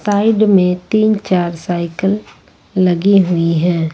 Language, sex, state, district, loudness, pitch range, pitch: Hindi, female, Jharkhand, Ranchi, -14 LUFS, 175-205 Hz, 185 Hz